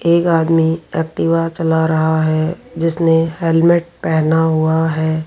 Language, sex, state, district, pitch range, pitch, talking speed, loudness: Hindi, female, Rajasthan, Jaipur, 160-165 Hz, 160 Hz, 125 wpm, -15 LUFS